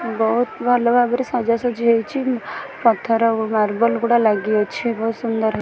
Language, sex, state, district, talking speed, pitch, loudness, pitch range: Odia, female, Odisha, Khordha, 140 wpm, 230 Hz, -19 LUFS, 220-240 Hz